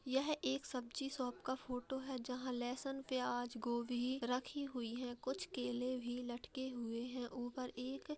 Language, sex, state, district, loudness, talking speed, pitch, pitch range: Hindi, female, Uttar Pradesh, Hamirpur, -43 LUFS, 170 wpm, 250 Hz, 245-265 Hz